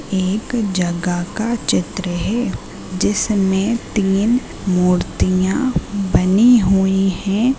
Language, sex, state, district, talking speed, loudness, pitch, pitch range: Hindi, female, Uttar Pradesh, Gorakhpur, 85 wpm, -17 LUFS, 195 Hz, 185-225 Hz